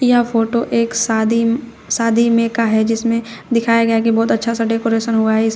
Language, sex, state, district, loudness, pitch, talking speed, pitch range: Hindi, female, Uttar Pradesh, Shamli, -16 LUFS, 230 Hz, 205 wpm, 225-230 Hz